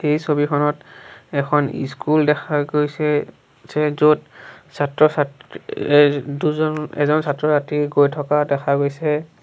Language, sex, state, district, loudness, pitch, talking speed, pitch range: Assamese, male, Assam, Sonitpur, -19 LUFS, 150 Hz, 115 wpm, 145-150 Hz